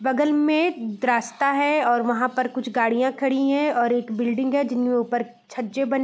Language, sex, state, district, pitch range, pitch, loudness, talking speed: Hindi, female, Bihar, Vaishali, 240-275 Hz, 255 Hz, -22 LUFS, 220 wpm